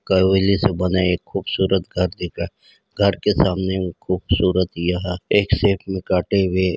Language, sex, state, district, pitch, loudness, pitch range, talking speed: Hindi, male, Uttarakhand, Uttarkashi, 95 Hz, -20 LUFS, 90-95 Hz, 160 wpm